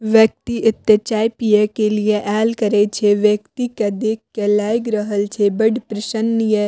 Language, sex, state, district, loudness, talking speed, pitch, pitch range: Maithili, female, Bihar, Madhepura, -17 LUFS, 180 wpm, 215 Hz, 210-225 Hz